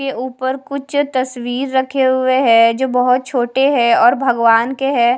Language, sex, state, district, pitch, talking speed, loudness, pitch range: Hindi, female, Haryana, Charkhi Dadri, 260 Hz, 175 wpm, -15 LUFS, 245-270 Hz